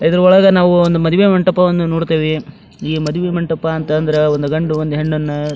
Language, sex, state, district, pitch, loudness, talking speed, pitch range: Kannada, male, Karnataka, Dharwad, 160 Hz, -14 LUFS, 170 wpm, 155-175 Hz